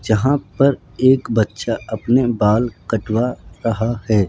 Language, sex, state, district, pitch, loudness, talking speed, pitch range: Hindi, male, Rajasthan, Jaipur, 115 Hz, -18 LUFS, 125 wpm, 105-125 Hz